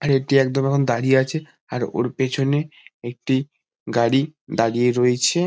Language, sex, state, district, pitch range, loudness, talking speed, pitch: Bengali, male, West Bengal, Kolkata, 125-140 Hz, -21 LUFS, 140 wpm, 135 Hz